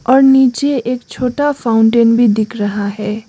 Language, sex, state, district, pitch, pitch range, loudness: Hindi, female, Sikkim, Gangtok, 235 Hz, 215-260 Hz, -13 LUFS